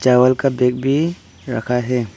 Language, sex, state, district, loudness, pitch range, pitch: Hindi, male, Arunachal Pradesh, Papum Pare, -18 LUFS, 125-135 Hz, 125 Hz